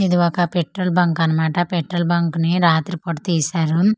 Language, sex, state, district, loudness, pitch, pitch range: Telugu, female, Andhra Pradesh, Manyam, -19 LUFS, 175 Hz, 165-180 Hz